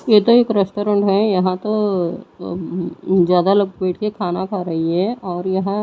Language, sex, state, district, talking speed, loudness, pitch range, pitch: Hindi, female, Odisha, Nuapada, 175 wpm, -18 LUFS, 180-205 Hz, 190 Hz